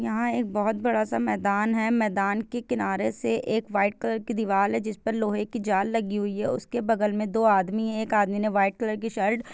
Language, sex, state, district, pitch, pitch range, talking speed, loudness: Hindi, female, Chhattisgarh, Bilaspur, 215 Hz, 205-225 Hz, 245 wpm, -26 LUFS